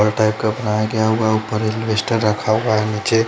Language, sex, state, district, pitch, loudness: Hindi, male, Chandigarh, Chandigarh, 110 Hz, -18 LUFS